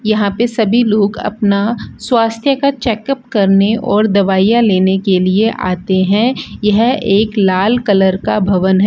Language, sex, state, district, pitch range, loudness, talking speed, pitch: Hindi, female, Rajasthan, Bikaner, 195-230 Hz, -13 LUFS, 155 wpm, 210 Hz